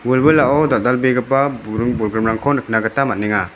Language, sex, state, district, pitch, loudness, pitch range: Garo, male, Meghalaya, West Garo Hills, 125 Hz, -16 LUFS, 110-135 Hz